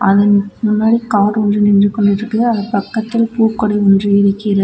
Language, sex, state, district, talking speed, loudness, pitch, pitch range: Tamil, female, Tamil Nadu, Namakkal, 170 wpm, -13 LUFS, 205 Hz, 200-220 Hz